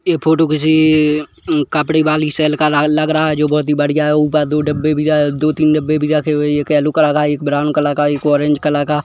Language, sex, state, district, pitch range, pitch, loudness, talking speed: Hindi, male, Chhattisgarh, Kabirdham, 150-155 Hz, 150 Hz, -14 LUFS, 280 wpm